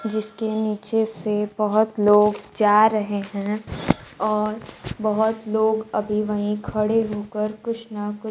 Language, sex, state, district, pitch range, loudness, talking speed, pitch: Hindi, female, Bihar, Kaimur, 210-220 Hz, -22 LUFS, 130 wpm, 215 Hz